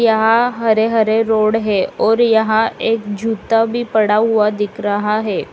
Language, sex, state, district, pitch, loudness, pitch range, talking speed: Hindi, female, Uttar Pradesh, Lalitpur, 220 Hz, -15 LUFS, 210-225 Hz, 165 wpm